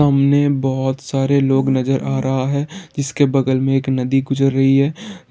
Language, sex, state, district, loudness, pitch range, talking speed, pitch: Hindi, male, Bihar, Saran, -17 LUFS, 135-140 Hz, 180 wpm, 135 Hz